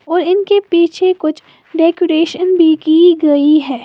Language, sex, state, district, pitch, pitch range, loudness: Hindi, female, Uttar Pradesh, Lalitpur, 335 Hz, 310-355 Hz, -12 LUFS